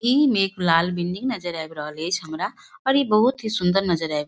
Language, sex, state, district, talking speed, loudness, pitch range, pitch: Maithili, female, Bihar, Darbhanga, 250 wpm, -22 LUFS, 165-225 Hz, 180 Hz